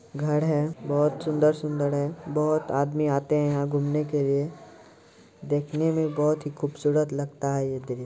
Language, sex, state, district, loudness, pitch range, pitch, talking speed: Maithili, male, Bihar, Supaul, -26 LUFS, 145-150 Hz, 150 Hz, 165 wpm